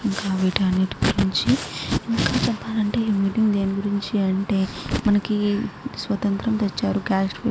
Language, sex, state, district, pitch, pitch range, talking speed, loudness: Telugu, female, Andhra Pradesh, Guntur, 200 Hz, 190-210 Hz, 120 wpm, -22 LUFS